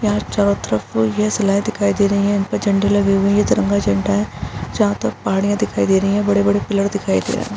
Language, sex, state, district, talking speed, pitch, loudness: Hindi, female, Bihar, Araria, 245 wpm, 195 Hz, -17 LUFS